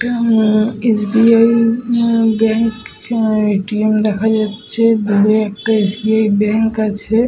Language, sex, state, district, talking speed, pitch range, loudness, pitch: Bengali, female, West Bengal, Paschim Medinipur, 150 wpm, 215-230 Hz, -14 LUFS, 220 Hz